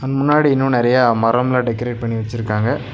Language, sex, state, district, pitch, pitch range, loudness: Tamil, male, Tamil Nadu, Nilgiris, 120 Hz, 115-130 Hz, -17 LUFS